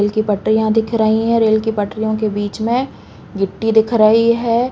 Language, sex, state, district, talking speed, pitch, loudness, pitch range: Hindi, female, Uttar Pradesh, Deoria, 205 wpm, 220 Hz, -16 LUFS, 215-230 Hz